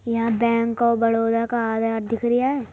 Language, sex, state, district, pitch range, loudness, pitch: Hindi, female, Uttar Pradesh, Budaun, 230-235 Hz, -21 LUFS, 230 Hz